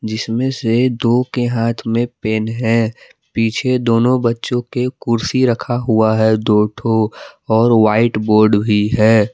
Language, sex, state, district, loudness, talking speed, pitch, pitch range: Hindi, male, Jharkhand, Palamu, -15 LUFS, 140 wpm, 115 Hz, 110-120 Hz